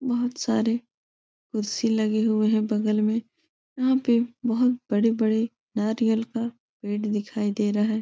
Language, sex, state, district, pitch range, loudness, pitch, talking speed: Hindi, female, Uttar Pradesh, Etah, 215-240 Hz, -25 LUFS, 225 Hz, 150 wpm